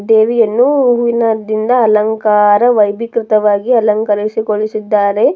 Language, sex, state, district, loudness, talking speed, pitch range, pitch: Kannada, female, Karnataka, Bidar, -12 LUFS, 65 wpm, 210-235 Hz, 220 Hz